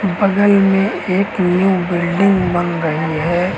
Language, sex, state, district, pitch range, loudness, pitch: Hindi, male, Uttar Pradesh, Lucknow, 175-195 Hz, -15 LUFS, 180 Hz